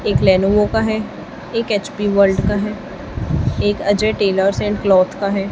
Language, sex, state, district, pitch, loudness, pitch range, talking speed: Hindi, female, Chhattisgarh, Raipur, 205 Hz, -17 LUFS, 195-210 Hz, 175 wpm